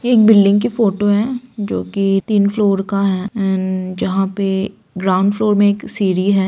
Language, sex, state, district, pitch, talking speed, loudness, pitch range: Hindi, female, Bihar, Saran, 200 Hz, 195 wpm, -16 LUFS, 195-210 Hz